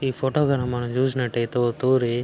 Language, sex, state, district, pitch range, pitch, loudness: Telugu, male, Andhra Pradesh, Anantapur, 120-130 Hz, 125 Hz, -23 LUFS